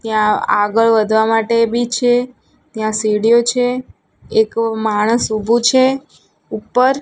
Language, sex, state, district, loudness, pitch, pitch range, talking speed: Gujarati, female, Gujarat, Gandhinagar, -15 LUFS, 230 Hz, 220-245 Hz, 120 wpm